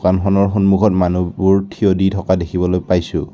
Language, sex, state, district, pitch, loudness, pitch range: Assamese, male, Assam, Kamrup Metropolitan, 95 Hz, -16 LUFS, 90-100 Hz